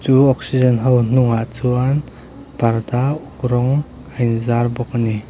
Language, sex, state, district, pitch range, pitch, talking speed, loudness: Mizo, male, Mizoram, Aizawl, 120-130 Hz, 125 Hz, 145 wpm, -17 LUFS